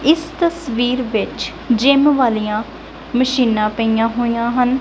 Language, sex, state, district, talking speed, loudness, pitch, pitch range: Punjabi, female, Punjab, Kapurthala, 110 wpm, -17 LUFS, 245 Hz, 230-270 Hz